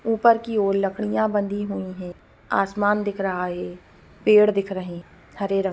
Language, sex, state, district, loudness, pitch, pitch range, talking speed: Hindi, female, Bihar, Gopalganj, -22 LUFS, 195 Hz, 185-210 Hz, 190 wpm